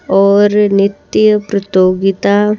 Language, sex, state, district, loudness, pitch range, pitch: Hindi, female, Madhya Pradesh, Bhopal, -11 LUFS, 195-210 Hz, 200 Hz